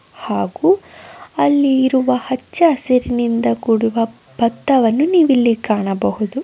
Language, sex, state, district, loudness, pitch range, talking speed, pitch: Kannada, female, Karnataka, Dharwad, -16 LUFS, 230-275 Hz, 65 wpm, 250 Hz